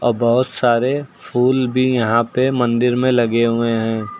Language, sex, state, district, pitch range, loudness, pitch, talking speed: Hindi, male, Uttar Pradesh, Lucknow, 115-125 Hz, -17 LUFS, 120 Hz, 155 wpm